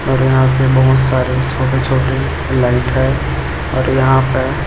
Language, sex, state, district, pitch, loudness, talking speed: Hindi, male, Chhattisgarh, Raipur, 125 Hz, -14 LUFS, 155 wpm